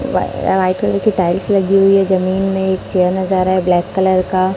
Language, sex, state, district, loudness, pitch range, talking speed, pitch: Hindi, male, Chhattisgarh, Raipur, -15 LUFS, 185-195 Hz, 235 wpm, 190 Hz